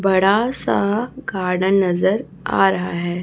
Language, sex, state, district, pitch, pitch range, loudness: Hindi, female, Chhattisgarh, Raipur, 195 Hz, 180-205 Hz, -19 LUFS